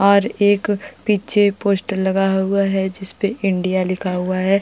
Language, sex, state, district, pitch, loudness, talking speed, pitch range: Hindi, female, Uttar Pradesh, Jalaun, 195 Hz, -18 LUFS, 155 wpm, 190-205 Hz